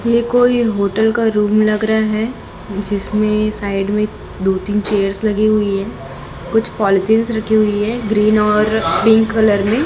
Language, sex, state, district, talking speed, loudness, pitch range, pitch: Hindi, female, Chhattisgarh, Raipur, 165 wpm, -15 LUFS, 200-220 Hz, 215 Hz